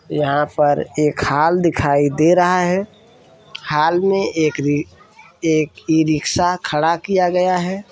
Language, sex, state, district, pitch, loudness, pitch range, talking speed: Hindi, male, Bihar, Saran, 160 Hz, -17 LUFS, 150-180 Hz, 135 wpm